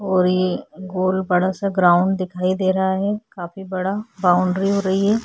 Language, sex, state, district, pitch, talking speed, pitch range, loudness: Hindi, female, Chhattisgarh, Korba, 190 Hz, 180 wpm, 185-195 Hz, -20 LUFS